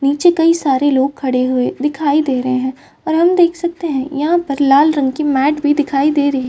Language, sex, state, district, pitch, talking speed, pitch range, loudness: Hindi, female, Uttar Pradesh, Varanasi, 285 Hz, 240 wpm, 270-310 Hz, -15 LUFS